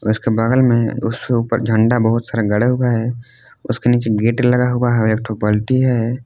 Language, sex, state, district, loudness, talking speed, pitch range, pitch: Hindi, male, Jharkhand, Palamu, -16 LUFS, 210 wpm, 110-125 Hz, 115 Hz